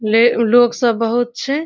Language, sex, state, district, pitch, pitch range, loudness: Maithili, female, Bihar, Saharsa, 240 Hz, 230-245 Hz, -15 LUFS